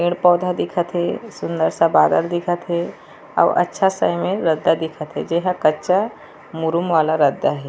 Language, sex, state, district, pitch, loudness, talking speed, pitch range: Chhattisgarhi, female, Chhattisgarh, Raigarh, 170 Hz, -19 LUFS, 170 wpm, 155-180 Hz